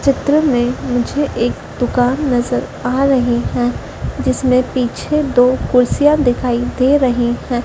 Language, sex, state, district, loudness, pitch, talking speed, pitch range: Hindi, female, Madhya Pradesh, Dhar, -15 LUFS, 250 Hz, 135 wpm, 245-275 Hz